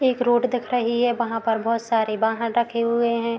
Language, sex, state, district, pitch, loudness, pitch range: Hindi, female, Bihar, Madhepura, 235 Hz, -22 LUFS, 230-240 Hz